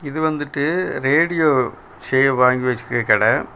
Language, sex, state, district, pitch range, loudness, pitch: Tamil, male, Tamil Nadu, Kanyakumari, 135-155 Hz, -18 LUFS, 145 Hz